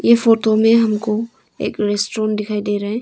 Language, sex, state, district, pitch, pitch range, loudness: Hindi, female, Arunachal Pradesh, Longding, 215 Hz, 210-225 Hz, -17 LUFS